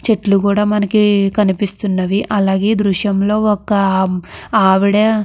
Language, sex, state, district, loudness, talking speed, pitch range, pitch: Telugu, female, Andhra Pradesh, Krishna, -14 LUFS, 125 wpm, 195-210 Hz, 205 Hz